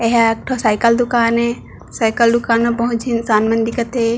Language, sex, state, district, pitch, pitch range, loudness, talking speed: Chhattisgarhi, female, Chhattisgarh, Bilaspur, 235 Hz, 230-235 Hz, -16 LUFS, 200 wpm